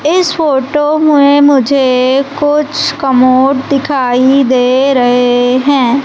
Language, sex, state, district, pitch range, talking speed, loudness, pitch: Hindi, female, Madhya Pradesh, Umaria, 255-290 Hz, 100 wpm, -10 LUFS, 275 Hz